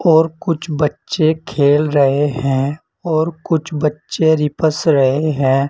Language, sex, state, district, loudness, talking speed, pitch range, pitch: Hindi, male, Uttar Pradesh, Saharanpur, -16 LUFS, 125 wpm, 145-160 Hz, 155 Hz